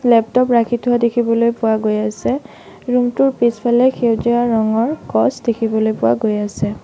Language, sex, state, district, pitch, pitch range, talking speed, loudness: Assamese, female, Assam, Sonitpur, 235 Hz, 220-245 Hz, 150 wpm, -16 LUFS